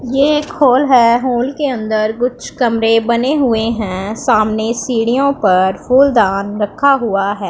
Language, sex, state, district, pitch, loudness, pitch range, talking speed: Hindi, female, Punjab, Pathankot, 235 Hz, -14 LUFS, 215-260 Hz, 150 wpm